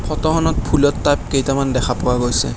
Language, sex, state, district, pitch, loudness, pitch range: Assamese, male, Assam, Kamrup Metropolitan, 135 Hz, -17 LUFS, 125-145 Hz